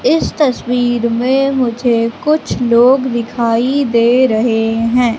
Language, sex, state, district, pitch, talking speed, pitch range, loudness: Hindi, female, Madhya Pradesh, Katni, 240 Hz, 115 wpm, 230-260 Hz, -13 LUFS